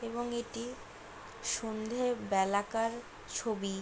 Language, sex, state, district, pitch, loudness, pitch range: Bengali, female, West Bengal, Jalpaiguri, 230 Hz, -35 LUFS, 215-235 Hz